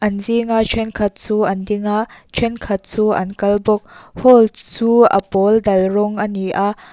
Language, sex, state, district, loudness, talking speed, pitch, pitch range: Mizo, female, Mizoram, Aizawl, -16 LUFS, 180 wpm, 210 Hz, 200-225 Hz